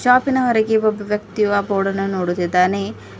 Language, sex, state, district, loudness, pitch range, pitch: Kannada, female, Karnataka, Bidar, -18 LUFS, 185-220 Hz, 205 Hz